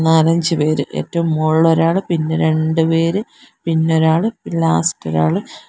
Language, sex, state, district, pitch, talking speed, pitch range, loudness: Malayalam, female, Kerala, Kollam, 160 Hz, 115 wpm, 155-165 Hz, -16 LUFS